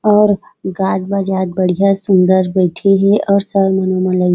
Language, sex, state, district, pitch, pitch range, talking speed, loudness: Chhattisgarhi, female, Chhattisgarh, Raigarh, 190 Hz, 185-200 Hz, 110 wpm, -14 LUFS